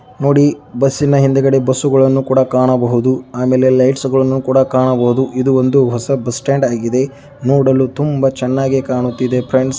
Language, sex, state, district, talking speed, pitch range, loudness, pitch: Kannada, male, Karnataka, Chamarajanagar, 130 wpm, 130-135 Hz, -14 LUFS, 130 Hz